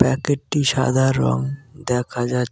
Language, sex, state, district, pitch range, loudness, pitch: Bengali, male, West Bengal, Cooch Behar, 125-140 Hz, -20 LUFS, 130 Hz